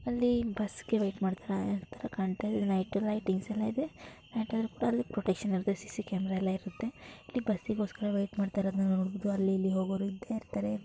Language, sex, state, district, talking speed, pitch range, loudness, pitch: Kannada, female, Karnataka, Shimoga, 165 wpm, 190-220 Hz, -33 LUFS, 200 Hz